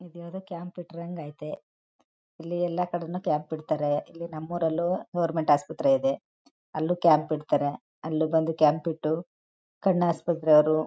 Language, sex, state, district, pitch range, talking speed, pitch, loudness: Kannada, female, Karnataka, Chamarajanagar, 155-175 Hz, 125 wpm, 165 Hz, -27 LUFS